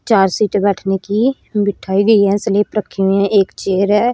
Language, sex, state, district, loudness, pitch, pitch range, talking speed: Hindi, female, Haryana, Rohtak, -15 LUFS, 200 Hz, 195-210 Hz, 215 wpm